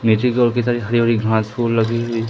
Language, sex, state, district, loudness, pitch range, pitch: Hindi, male, Madhya Pradesh, Umaria, -18 LUFS, 115-120 Hz, 115 Hz